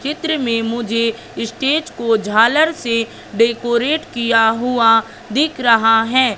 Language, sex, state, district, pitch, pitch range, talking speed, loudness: Hindi, female, Madhya Pradesh, Katni, 235 Hz, 225-260 Hz, 120 wpm, -16 LUFS